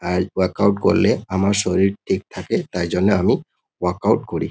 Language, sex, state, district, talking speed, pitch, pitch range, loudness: Bengali, male, West Bengal, Kolkata, 185 wpm, 95 Hz, 90-100 Hz, -19 LUFS